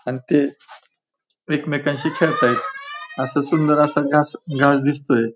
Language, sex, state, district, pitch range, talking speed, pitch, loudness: Marathi, male, Maharashtra, Pune, 140-155 Hz, 110 wpm, 145 Hz, -19 LUFS